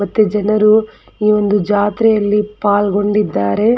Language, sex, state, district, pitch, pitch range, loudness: Kannada, female, Karnataka, Belgaum, 210 Hz, 205-215 Hz, -14 LUFS